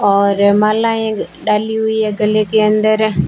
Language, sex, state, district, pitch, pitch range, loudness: Hindi, female, Rajasthan, Bikaner, 215 Hz, 210-220 Hz, -14 LUFS